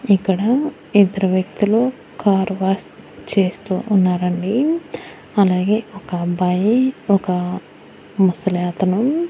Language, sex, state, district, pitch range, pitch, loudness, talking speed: Telugu, female, Andhra Pradesh, Annamaya, 185-220 Hz, 195 Hz, -18 LUFS, 90 wpm